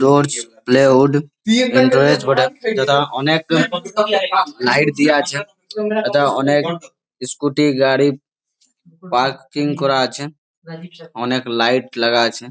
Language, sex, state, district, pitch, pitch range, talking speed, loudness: Bengali, male, West Bengal, Malda, 145 Hz, 135-170 Hz, 75 wpm, -16 LUFS